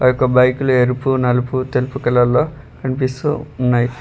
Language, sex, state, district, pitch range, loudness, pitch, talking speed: Telugu, male, Telangana, Hyderabad, 125-130 Hz, -17 LUFS, 130 Hz, 150 wpm